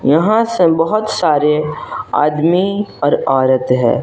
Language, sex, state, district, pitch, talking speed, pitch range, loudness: Hindi, male, Jharkhand, Garhwa, 155 Hz, 120 wpm, 145-195 Hz, -14 LUFS